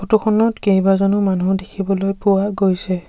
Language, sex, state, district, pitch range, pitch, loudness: Assamese, male, Assam, Sonitpur, 190-205 Hz, 195 Hz, -17 LUFS